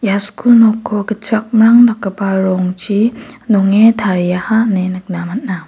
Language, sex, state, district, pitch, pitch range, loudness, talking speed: Garo, female, Meghalaya, West Garo Hills, 205 Hz, 190-225 Hz, -13 LUFS, 115 wpm